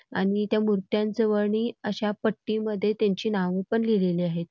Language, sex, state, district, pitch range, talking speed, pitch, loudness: Marathi, female, Karnataka, Belgaum, 195-220 Hz, 120 wpm, 210 Hz, -26 LUFS